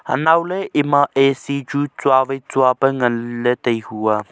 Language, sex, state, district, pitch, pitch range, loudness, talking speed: Wancho, male, Arunachal Pradesh, Longding, 135 Hz, 120-145 Hz, -18 LUFS, 195 wpm